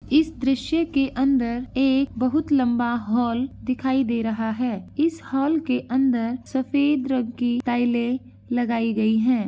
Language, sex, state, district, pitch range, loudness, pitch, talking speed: Hindi, female, Uttar Pradesh, Ghazipur, 240-270 Hz, -23 LUFS, 255 Hz, 145 wpm